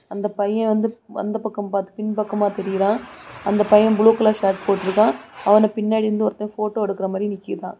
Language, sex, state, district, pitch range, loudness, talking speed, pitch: Tamil, female, Tamil Nadu, Kanyakumari, 200-215 Hz, -20 LUFS, 185 wpm, 210 Hz